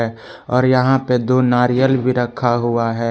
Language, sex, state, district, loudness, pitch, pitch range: Hindi, male, Jharkhand, Palamu, -16 LUFS, 125 Hz, 120-130 Hz